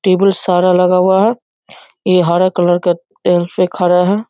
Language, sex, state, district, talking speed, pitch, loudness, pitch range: Hindi, male, Bihar, Darbhanga, 155 wpm, 180 Hz, -13 LUFS, 175-190 Hz